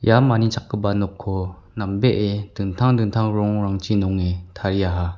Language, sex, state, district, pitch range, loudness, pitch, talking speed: Garo, male, Meghalaya, West Garo Hills, 95-110 Hz, -21 LUFS, 100 Hz, 105 wpm